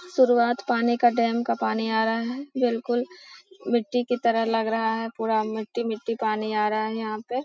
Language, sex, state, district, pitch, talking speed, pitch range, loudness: Hindi, female, Bihar, Lakhisarai, 230 Hz, 210 wpm, 220-240 Hz, -25 LUFS